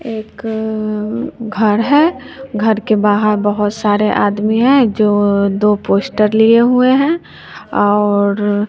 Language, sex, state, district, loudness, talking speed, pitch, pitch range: Hindi, male, Bihar, West Champaran, -14 LUFS, 115 wpm, 215 Hz, 205-230 Hz